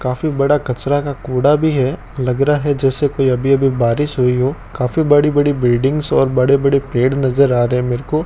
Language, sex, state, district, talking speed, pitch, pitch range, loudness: Hindi, male, Rajasthan, Bikaner, 220 wpm, 135 Hz, 125-145 Hz, -15 LUFS